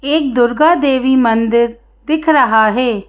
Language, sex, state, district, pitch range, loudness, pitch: Hindi, female, Madhya Pradesh, Bhopal, 235-290 Hz, -13 LUFS, 250 Hz